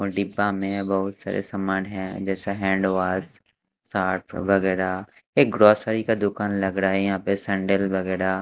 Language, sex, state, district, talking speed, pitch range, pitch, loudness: Hindi, male, Haryana, Charkhi Dadri, 150 wpm, 95-100 Hz, 95 Hz, -23 LUFS